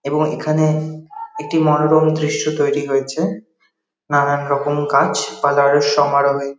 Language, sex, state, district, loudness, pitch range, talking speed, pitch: Bengali, male, West Bengal, Dakshin Dinajpur, -17 LUFS, 140-155 Hz, 110 wpm, 145 Hz